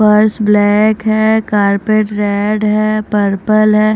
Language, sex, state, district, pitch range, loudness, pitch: Hindi, female, Maharashtra, Mumbai Suburban, 205-215 Hz, -12 LUFS, 215 Hz